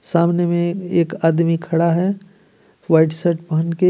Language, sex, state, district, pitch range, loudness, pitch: Hindi, male, Jharkhand, Ranchi, 165-180 Hz, -18 LUFS, 170 Hz